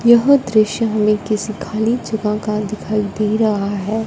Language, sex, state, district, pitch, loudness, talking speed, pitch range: Hindi, female, Punjab, Fazilka, 215 Hz, -17 LUFS, 160 wpm, 210-225 Hz